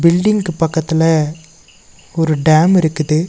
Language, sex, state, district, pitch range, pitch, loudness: Tamil, male, Tamil Nadu, Nilgiris, 155-170 Hz, 160 Hz, -14 LUFS